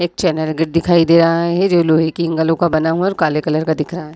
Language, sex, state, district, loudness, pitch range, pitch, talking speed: Hindi, female, Bihar, Purnia, -15 LUFS, 160-170 Hz, 165 Hz, 315 wpm